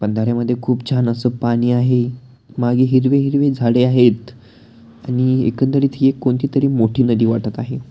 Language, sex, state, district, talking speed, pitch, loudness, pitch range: Marathi, male, Maharashtra, Pune, 165 wpm, 125 Hz, -16 LUFS, 120-130 Hz